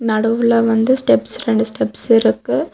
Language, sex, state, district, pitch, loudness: Tamil, female, Tamil Nadu, Nilgiris, 225 Hz, -15 LUFS